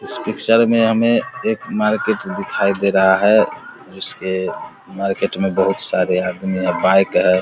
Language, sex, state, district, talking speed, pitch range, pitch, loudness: Hindi, male, Bihar, Vaishali, 160 wpm, 95-110 Hz, 95 Hz, -17 LUFS